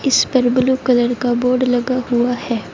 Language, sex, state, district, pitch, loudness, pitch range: Hindi, female, Uttar Pradesh, Saharanpur, 250 Hz, -16 LUFS, 245-255 Hz